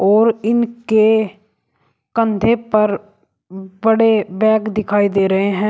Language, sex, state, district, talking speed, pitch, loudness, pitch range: Hindi, male, Uttar Pradesh, Shamli, 105 wpm, 215 Hz, -16 LUFS, 200-225 Hz